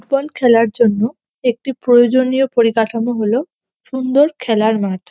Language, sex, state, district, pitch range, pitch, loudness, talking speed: Bengali, female, West Bengal, North 24 Parganas, 225-260 Hz, 240 Hz, -15 LUFS, 115 wpm